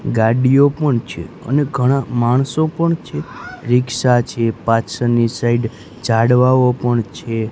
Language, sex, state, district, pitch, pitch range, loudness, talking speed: Gujarati, male, Gujarat, Gandhinagar, 120 Hz, 115-130 Hz, -16 LUFS, 120 wpm